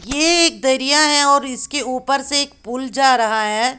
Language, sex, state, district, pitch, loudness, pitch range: Hindi, female, Uttar Pradesh, Lalitpur, 270 Hz, -16 LUFS, 255-285 Hz